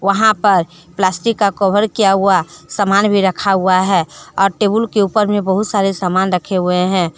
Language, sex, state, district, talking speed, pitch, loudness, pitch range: Hindi, female, Jharkhand, Deoghar, 190 wpm, 195 Hz, -14 LUFS, 185-205 Hz